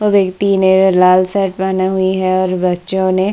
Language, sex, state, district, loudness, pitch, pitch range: Hindi, female, Bihar, Kishanganj, -13 LUFS, 190 Hz, 185-190 Hz